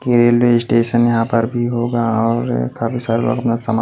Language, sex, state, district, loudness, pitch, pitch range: Hindi, male, Maharashtra, Washim, -16 LUFS, 115 Hz, 115-120 Hz